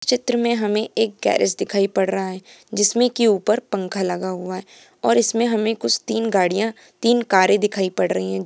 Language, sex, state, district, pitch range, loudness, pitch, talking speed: Hindi, female, Bihar, Purnia, 185-225 Hz, -20 LUFS, 205 Hz, 200 wpm